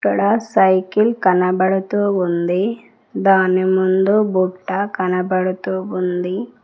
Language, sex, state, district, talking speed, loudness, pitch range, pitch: Telugu, female, Telangana, Mahabubabad, 80 wpm, -17 LUFS, 185-205 Hz, 190 Hz